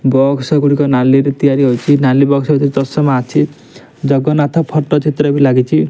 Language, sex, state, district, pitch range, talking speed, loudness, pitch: Odia, male, Odisha, Nuapada, 135-150 Hz, 160 wpm, -12 LUFS, 140 Hz